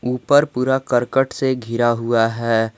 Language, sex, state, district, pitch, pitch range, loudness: Hindi, male, Jharkhand, Garhwa, 120 Hz, 115-130 Hz, -18 LUFS